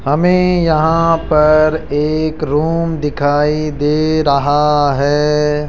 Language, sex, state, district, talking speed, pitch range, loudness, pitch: Hindi, male, Rajasthan, Jaipur, 95 wpm, 145-155 Hz, -14 LUFS, 150 Hz